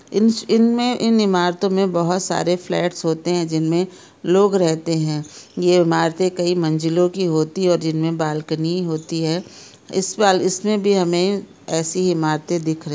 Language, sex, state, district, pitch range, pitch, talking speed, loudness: Hindi, female, Bihar, Araria, 160-190 Hz, 175 Hz, 160 wpm, -19 LUFS